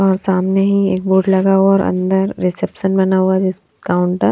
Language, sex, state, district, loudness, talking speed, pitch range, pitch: Hindi, female, Haryana, Rohtak, -15 LUFS, 235 wpm, 185-195 Hz, 190 Hz